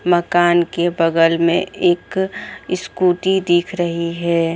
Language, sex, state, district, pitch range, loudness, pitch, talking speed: Hindi, female, Bihar, Araria, 170-185 Hz, -17 LUFS, 175 Hz, 120 wpm